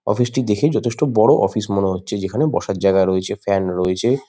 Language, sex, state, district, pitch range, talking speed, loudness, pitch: Bengali, male, West Bengal, Malda, 95-125 Hz, 195 wpm, -18 LUFS, 100 Hz